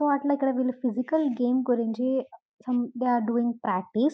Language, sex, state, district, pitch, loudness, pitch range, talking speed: Telugu, female, Telangana, Karimnagar, 250 Hz, -26 LUFS, 240-265 Hz, 190 wpm